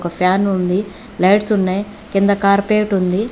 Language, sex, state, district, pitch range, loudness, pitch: Telugu, female, Telangana, Hyderabad, 185-205 Hz, -16 LUFS, 200 Hz